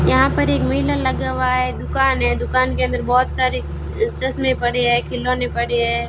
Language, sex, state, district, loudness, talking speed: Hindi, female, Rajasthan, Bikaner, -19 LUFS, 195 wpm